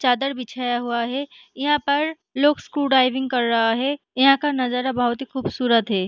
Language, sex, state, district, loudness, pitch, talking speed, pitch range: Hindi, female, Bihar, Saharsa, -21 LUFS, 260 Hz, 185 wpm, 245-280 Hz